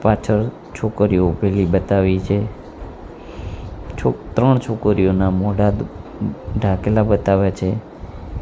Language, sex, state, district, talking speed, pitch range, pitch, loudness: Gujarati, male, Gujarat, Gandhinagar, 85 wpm, 95-105 Hz, 100 Hz, -18 LUFS